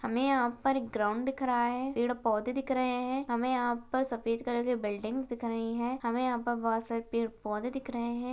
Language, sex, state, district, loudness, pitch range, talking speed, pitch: Hindi, female, Bihar, Kishanganj, -32 LUFS, 230-255 Hz, 225 wpm, 240 Hz